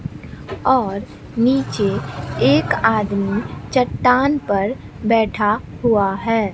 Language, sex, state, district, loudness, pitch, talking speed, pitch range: Hindi, female, Bihar, Katihar, -18 LUFS, 225 Hz, 85 wpm, 205-250 Hz